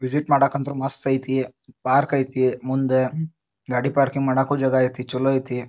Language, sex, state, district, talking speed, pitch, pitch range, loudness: Kannada, male, Karnataka, Dharwad, 145 wpm, 135 Hz, 130-140 Hz, -22 LUFS